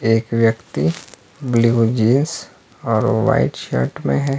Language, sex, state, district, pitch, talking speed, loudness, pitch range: Hindi, male, Himachal Pradesh, Shimla, 115 Hz, 125 wpm, -18 LUFS, 85-120 Hz